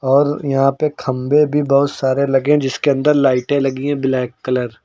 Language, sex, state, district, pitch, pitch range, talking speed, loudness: Hindi, male, Uttar Pradesh, Lucknow, 140 Hz, 130-145 Hz, 200 wpm, -16 LUFS